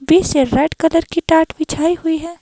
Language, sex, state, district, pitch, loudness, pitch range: Hindi, female, Himachal Pradesh, Shimla, 325 Hz, -16 LUFS, 315-335 Hz